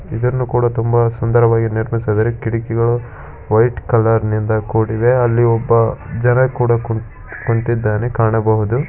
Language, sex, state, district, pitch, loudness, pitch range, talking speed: Kannada, male, Karnataka, Shimoga, 115 Hz, -16 LUFS, 110-120 Hz, 120 wpm